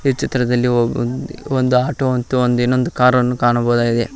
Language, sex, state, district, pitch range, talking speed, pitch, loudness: Kannada, male, Karnataka, Koppal, 120-130 Hz, 130 wpm, 125 Hz, -17 LUFS